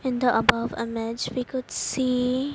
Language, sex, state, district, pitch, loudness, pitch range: English, female, Haryana, Rohtak, 250 Hz, -25 LUFS, 235-255 Hz